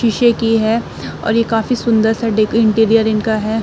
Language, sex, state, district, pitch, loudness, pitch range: Hindi, female, Uttar Pradesh, Muzaffarnagar, 225 Hz, -15 LUFS, 220-230 Hz